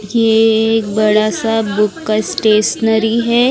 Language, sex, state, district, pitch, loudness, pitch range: Hindi, female, Haryana, Rohtak, 220 Hz, -13 LUFS, 215-225 Hz